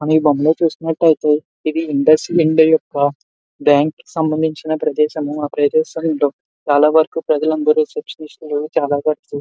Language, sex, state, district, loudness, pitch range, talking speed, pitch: Telugu, male, Andhra Pradesh, Visakhapatnam, -16 LUFS, 150-160 Hz, 135 wpm, 155 Hz